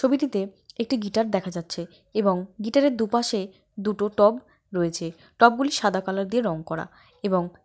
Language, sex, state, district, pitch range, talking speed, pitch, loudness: Bengali, female, West Bengal, Paschim Medinipur, 185-235 Hz, 140 wpm, 205 Hz, -25 LUFS